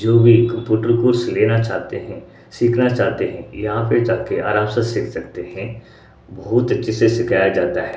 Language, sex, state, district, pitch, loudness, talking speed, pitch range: Hindi, male, Odisha, Sambalpur, 115 Hz, -18 LUFS, 190 wpm, 110-120 Hz